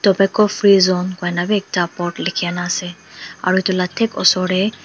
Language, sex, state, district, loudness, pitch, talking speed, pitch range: Nagamese, female, Nagaland, Dimapur, -17 LUFS, 185 Hz, 195 wpm, 175-195 Hz